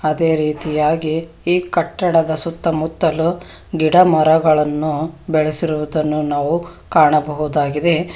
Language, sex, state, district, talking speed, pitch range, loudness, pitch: Kannada, female, Karnataka, Bangalore, 65 wpm, 150-165 Hz, -17 LUFS, 160 Hz